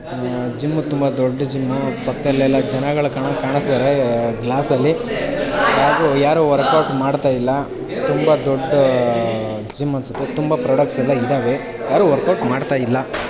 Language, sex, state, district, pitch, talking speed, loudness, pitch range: Kannada, male, Karnataka, Chamarajanagar, 135 Hz, 135 wpm, -18 LUFS, 130-145 Hz